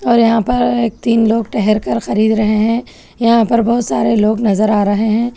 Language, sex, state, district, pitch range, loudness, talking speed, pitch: Hindi, female, Telangana, Hyderabad, 215-235 Hz, -14 LUFS, 225 wpm, 225 Hz